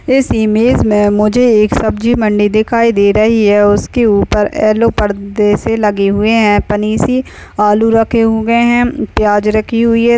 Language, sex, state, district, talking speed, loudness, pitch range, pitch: Hindi, female, Maharashtra, Chandrapur, 165 wpm, -11 LUFS, 210-230 Hz, 215 Hz